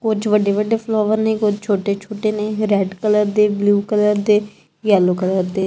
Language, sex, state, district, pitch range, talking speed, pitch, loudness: Punjabi, female, Punjab, Kapurthala, 200-215 Hz, 190 wpm, 210 Hz, -17 LUFS